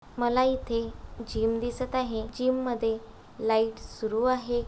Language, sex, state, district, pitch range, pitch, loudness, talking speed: Marathi, female, Maharashtra, Aurangabad, 225-255 Hz, 240 Hz, -29 LUFS, 130 wpm